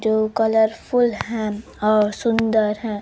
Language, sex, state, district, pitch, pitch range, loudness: Hindi, female, Bihar, Kaimur, 220 Hz, 215-225 Hz, -20 LUFS